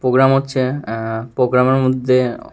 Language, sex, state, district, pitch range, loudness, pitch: Bengali, male, Tripura, West Tripura, 125-130 Hz, -16 LUFS, 130 Hz